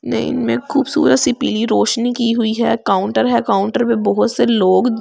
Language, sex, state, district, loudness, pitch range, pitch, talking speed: Hindi, female, Delhi, New Delhi, -15 LUFS, 220-245 Hz, 235 Hz, 205 wpm